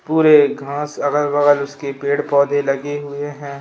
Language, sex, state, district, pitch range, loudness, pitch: Hindi, female, Madhya Pradesh, Umaria, 140-145 Hz, -17 LUFS, 145 Hz